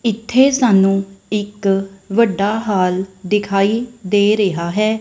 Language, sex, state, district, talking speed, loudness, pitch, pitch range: Punjabi, female, Punjab, Kapurthala, 110 wpm, -16 LUFS, 205 Hz, 195-220 Hz